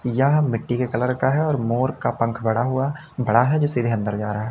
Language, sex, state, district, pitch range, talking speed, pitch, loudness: Hindi, male, Uttar Pradesh, Lalitpur, 115-135 Hz, 265 wpm, 125 Hz, -21 LUFS